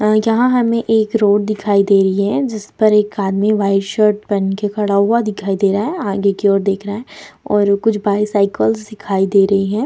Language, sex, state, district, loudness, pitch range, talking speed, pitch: Hindi, female, Bihar, Vaishali, -15 LUFS, 200-215 Hz, 220 wpm, 205 Hz